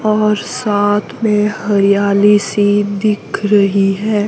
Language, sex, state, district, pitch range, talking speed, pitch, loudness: Hindi, female, Himachal Pradesh, Shimla, 200-210 Hz, 110 wpm, 205 Hz, -14 LUFS